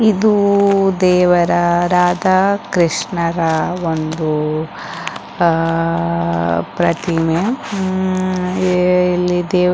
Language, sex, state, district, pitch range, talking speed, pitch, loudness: Kannada, female, Karnataka, Dakshina Kannada, 165-185 Hz, 90 wpm, 180 Hz, -16 LUFS